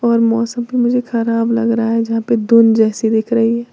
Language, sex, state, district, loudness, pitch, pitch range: Hindi, female, Uttar Pradesh, Lalitpur, -15 LUFS, 230 Hz, 230-235 Hz